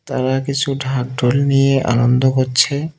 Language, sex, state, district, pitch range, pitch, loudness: Bengali, male, West Bengal, Cooch Behar, 125-140 Hz, 130 Hz, -16 LUFS